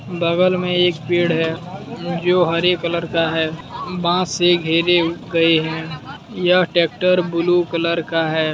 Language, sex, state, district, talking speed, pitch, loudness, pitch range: Hindi, male, Jharkhand, Deoghar, 155 wpm, 170 Hz, -18 LUFS, 165-180 Hz